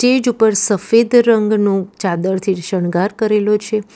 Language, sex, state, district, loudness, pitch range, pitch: Gujarati, female, Gujarat, Valsad, -15 LUFS, 190-225 Hz, 210 Hz